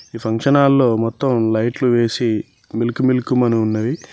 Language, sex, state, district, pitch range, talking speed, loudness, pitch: Telugu, male, Telangana, Mahabubabad, 115-130 Hz, 160 wpm, -17 LUFS, 120 Hz